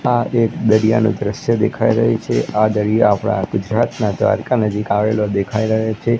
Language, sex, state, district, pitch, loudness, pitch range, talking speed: Gujarati, male, Gujarat, Gandhinagar, 110 Hz, -17 LUFS, 105-115 Hz, 165 wpm